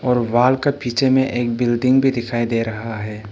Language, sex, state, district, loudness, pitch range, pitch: Hindi, male, Arunachal Pradesh, Papum Pare, -18 LUFS, 115-130 Hz, 120 Hz